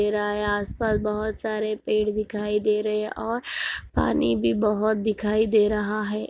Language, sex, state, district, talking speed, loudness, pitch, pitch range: Hindi, female, Jharkhand, Jamtara, 170 wpm, -24 LUFS, 210 Hz, 210-215 Hz